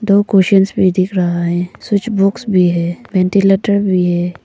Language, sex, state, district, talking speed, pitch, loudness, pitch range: Hindi, female, Arunachal Pradesh, Papum Pare, 175 wpm, 190 Hz, -14 LUFS, 175-200 Hz